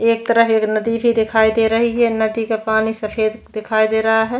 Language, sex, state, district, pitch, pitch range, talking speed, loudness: Hindi, female, Goa, North and South Goa, 225 Hz, 220-230 Hz, 230 wpm, -17 LUFS